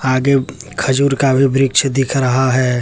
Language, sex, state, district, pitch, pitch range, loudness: Hindi, male, Jharkhand, Deoghar, 135 Hz, 130-135 Hz, -14 LUFS